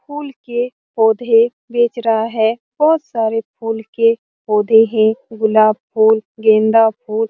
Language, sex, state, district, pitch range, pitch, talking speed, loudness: Hindi, female, Bihar, Lakhisarai, 220-240 Hz, 225 Hz, 140 wpm, -15 LUFS